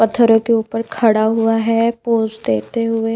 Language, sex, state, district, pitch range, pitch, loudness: Hindi, female, Maharashtra, Mumbai Suburban, 225-230 Hz, 225 Hz, -16 LUFS